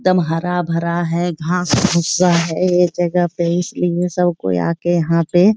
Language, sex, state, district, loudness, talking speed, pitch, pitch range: Hindi, female, Bihar, Supaul, -17 LUFS, 170 wpm, 175 Hz, 170-180 Hz